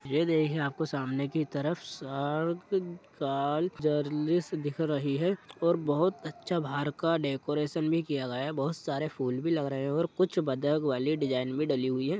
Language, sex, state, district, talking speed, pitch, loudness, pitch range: Hindi, male, Bihar, Kishanganj, 180 wpm, 150 Hz, -30 LUFS, 140-165 Hz